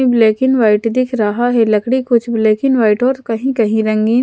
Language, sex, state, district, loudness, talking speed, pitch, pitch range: Hindi, female, Punjab, Pathankot, -14 LUFS, 225 wpm, 230 Hz, 220-255 Hz